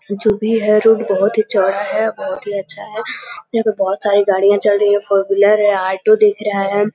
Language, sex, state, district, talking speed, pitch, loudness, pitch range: Hindi, female, Uttar Pradesh, Gorakhpur, 235 wpm, 205 Hz, -15 LUFS, 200-215 Hz